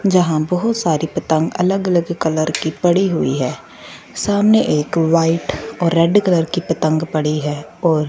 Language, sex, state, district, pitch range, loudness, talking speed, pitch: Hindi, female, Punjab, Fazilka, 155-180 Hz, -17 LUFS, 165 wpm, 165 Hz